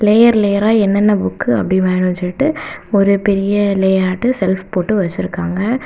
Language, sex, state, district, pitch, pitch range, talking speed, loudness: Tamil, female, Tamil Nadu, Kanyakumari, 200 Hz, 185-215 Hz, 135 wpm, -15 LUFS